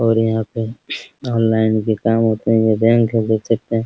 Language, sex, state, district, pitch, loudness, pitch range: Hindi, male, Bihar, Araria, 115 Hz, -17 LUFS, 110-115 Hz